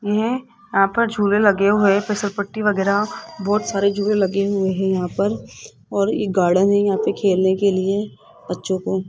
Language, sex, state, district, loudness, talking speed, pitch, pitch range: Hindi, female, Rajasthan, Jaipur, -19 LUFS, 185 wpm, 200 Hz, 195-210 Hz